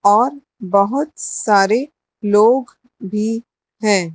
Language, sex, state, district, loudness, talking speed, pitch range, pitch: Hindi, male, Madhya Pradesh, Dhar, -17 LUFS, 85 wpm, 205-255 Hz, 220 Hz